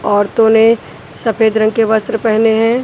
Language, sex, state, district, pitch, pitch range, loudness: Hindi, female, Haryana, Charkhi Dadri, 225 Hz, 220-225 Hz, -12 LUFS